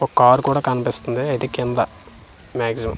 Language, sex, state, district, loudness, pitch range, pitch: Telugu, male, Andhra Pradesh, Manyam, -20 LUFS, 115-130 Hz, 125 Hz